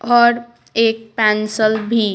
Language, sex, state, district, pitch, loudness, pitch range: Hindi, female, Bihar, Patna, 225 Hz, -16 LUFS, 215-235 Hz